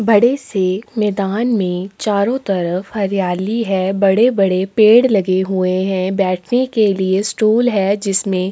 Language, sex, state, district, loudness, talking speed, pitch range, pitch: Hindi, female, Chhattisgarh, Kabirdham, -16 LUFS, 155 wpm, 190-220 Hz, 195 Hz